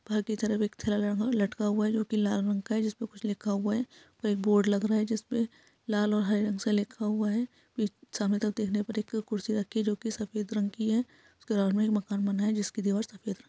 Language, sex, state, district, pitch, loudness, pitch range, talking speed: Hindi, female, Bihar, Saharsa, 210 Hz, -30 LUFS, 205-220 Hz, 265 wpm